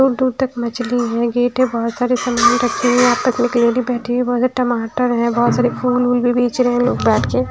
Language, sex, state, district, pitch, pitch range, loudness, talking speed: Hindi, female, Haryana, Charkhi Dadri, 245 Hz, 240-250 Hz, -16 LUFS, 265 wpm